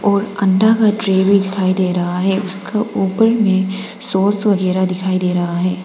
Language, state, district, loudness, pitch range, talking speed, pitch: Hindi, Arunachal Pradesh, Papum Pare, -16 LUFS, 185-205 Hz, 185 wpm, 195 Hz